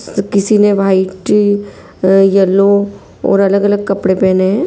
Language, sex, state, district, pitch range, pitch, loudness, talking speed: Hindi, female, Bihar, Saran, 190-205 Hz, 195 Hz, -12 LUFS, 115 wpm